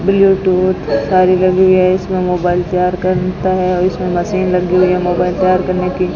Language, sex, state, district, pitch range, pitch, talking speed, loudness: Hindi, female, Rajasthan, Bikaner, 180-185 Hz, 185 Hz, 185 wpm, -13 LUFS